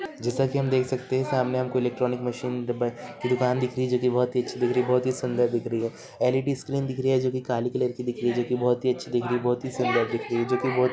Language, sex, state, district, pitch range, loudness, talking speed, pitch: Bhojpuri, male, Bihar, Saran, 120-130 Hz, -26 LUFS, 330 wpm, 125 Hz